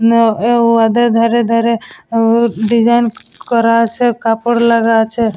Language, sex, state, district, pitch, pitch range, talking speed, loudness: Bengali, female, West Bengal, Dakshin Dinajpur, 230 Hz, 230-235 Hz, 135 wpm, -12 LUFS